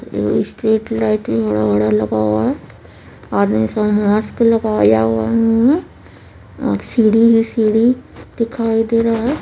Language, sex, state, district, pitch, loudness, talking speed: Maithili, female, Bihar, Supaul, 220 Hz, -15 LUFS, 145 wpm